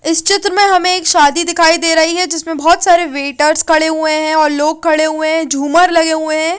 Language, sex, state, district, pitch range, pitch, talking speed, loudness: Hindi, female, Chandigarh, Chandigarh, 310-345 Hz, 320 Hz, 245 wpm, -11 LUFS